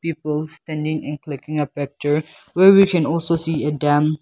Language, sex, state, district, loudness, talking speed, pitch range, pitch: English, male, Nagaland, Kohima, -19 LUFS, 185 wpm, 150-165 Hz, 155 Hz